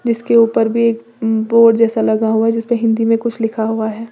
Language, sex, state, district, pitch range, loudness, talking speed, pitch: Hindi, female, Uttar Pradesh, Lalitpur, 225-230 Hz, -14 LUFS, 245 wpm, 225 Hz